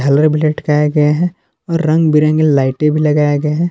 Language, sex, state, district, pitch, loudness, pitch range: Hindi, male, Jharkhand, Palamu, 150 Hz, -13 LUFS, 150-155 Hz